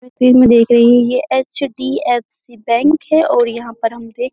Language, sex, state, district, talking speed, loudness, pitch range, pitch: Hindi, female, Uttar Pradesh, Jyotiba Phule Nagar, 210 wpm, -13 LUFS, 235-260 Hz, 245 Hz